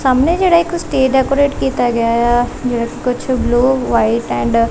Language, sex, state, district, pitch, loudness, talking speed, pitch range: Punjabi, female, Punjab, Kapurthala, 250 Hz, -15 LUFS, 180 wpm, 235-265 Hz